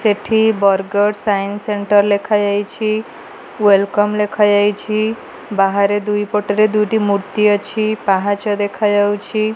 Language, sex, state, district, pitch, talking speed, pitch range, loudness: Odia, female, Odisha, Malkangiri, 205 Hz, 100 wpm, 205-215 Hz, -16 LUFS